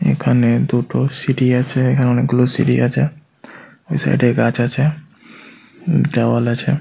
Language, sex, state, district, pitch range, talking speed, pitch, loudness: Bengali, male, West Bengal, Malda, 120-150 Hz, 140 wpm, 130 Hz, -16 LUFS